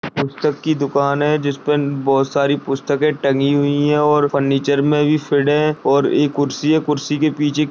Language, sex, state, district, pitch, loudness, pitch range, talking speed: Hindi, male, Bihar, Jamui, 145 Hz, -17 LUFS, 140-150 Hz, 210 wpm